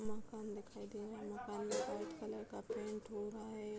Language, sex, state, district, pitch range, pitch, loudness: Hindi, female, Uttar Pradesh, Budaun, 210-220 Hz, 215 Hz, -46 LUFS